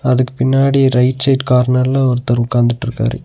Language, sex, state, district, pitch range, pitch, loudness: Tamil, male, Tamil Nadu, Nilgiris, 125-130 Hz, 125 Hz, -14 LUFS